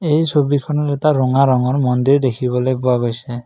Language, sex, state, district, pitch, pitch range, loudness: Assamese, male, Assam, Kamrup Metropolitan, 130 Hz, 125-145 Hz, -16 LUFS